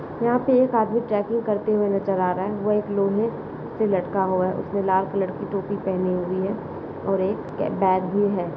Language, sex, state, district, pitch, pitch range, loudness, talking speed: Kumaoni, female, Uttarakhand, Uttarkashi, 200 Hz, 190-210 Hz, -23 LUFS, 210 wpm